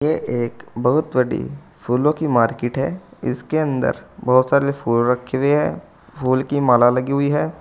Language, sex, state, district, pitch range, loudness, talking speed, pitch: Hindi, male, Uttar Pradesh, Saharanpur, 120-150 Hz, -19 LUFS, 165 wpm, 130 Hz